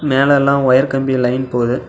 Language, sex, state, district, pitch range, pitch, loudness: Tamil, male, Tamil Nadu, Namakkal, 130-140 Hz, 130 Hz, -14 LUFS